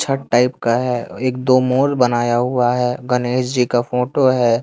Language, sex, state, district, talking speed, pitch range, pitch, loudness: Hindi, male, Bihar, West Champaran, 195 wpm, 120-130 Hz, 125 Hz, -17 LUFS